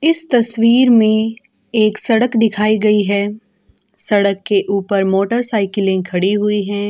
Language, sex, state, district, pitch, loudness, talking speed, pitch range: Hindi, female, Bihar, Gopalganj, 210 Hz, -15 LUFS, 140 wpm, 200-225 Hz